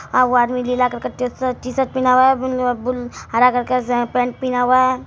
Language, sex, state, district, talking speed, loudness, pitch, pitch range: Hindi, female, Bihar, Araria, 165 wpm, -18 LUFS, 250 Hz, 245-255 Hz